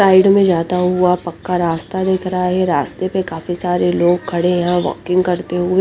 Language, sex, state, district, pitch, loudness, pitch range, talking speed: Hindi, female, Chandigarh, Chandigarh, 180 Hz, -16 LUFS, 175-185 Hz, 205 wpm